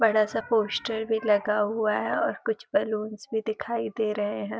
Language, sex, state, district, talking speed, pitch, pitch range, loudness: Hindi, female, Uttar Pradesh, Etah, 195 wpm, 215 Hz, 210-225 Hz, -27 LUFS